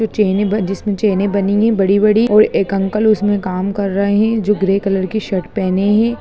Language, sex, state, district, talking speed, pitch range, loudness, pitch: Hindi, female, Bihar, Jahanabad, 210 wpm, 195-215 Hz, -15 LUFS, 205 Hz